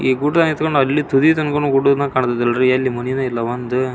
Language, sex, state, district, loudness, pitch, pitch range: Kannada, male, Karnataka, Belgaum, -17 LUFS, 135 Hz, 130-145 Hz